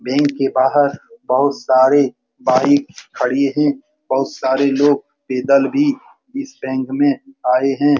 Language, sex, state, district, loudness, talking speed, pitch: Hindi, male, Bihar, Saran, -16 LUFS, 135 wpm, 140 Hz